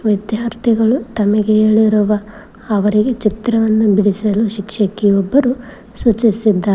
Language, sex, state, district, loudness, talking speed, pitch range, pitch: Kannada, female, Karnataka, Koppal, -15 LUFS, 80 wpm, 205-225 Hz, 215 Hz